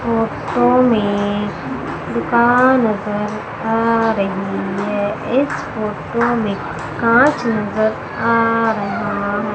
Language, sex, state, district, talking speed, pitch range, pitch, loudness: Hindi, female, Madhya Pradesh, Umaria, 90 wpm, 205-230 Hz, 215 Hz, -17 LUFS